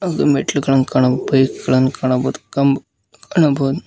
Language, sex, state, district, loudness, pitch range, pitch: Kannada, male, Karnataka, Koppal, -16 LUFS, 130-145 Hz, 135 Hz